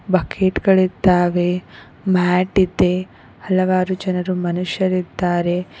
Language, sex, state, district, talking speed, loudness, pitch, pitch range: Kannada, female, Karnataka, Koppal, 70 wpm, -18 LUFS, 185 Hz, 180-185 Hz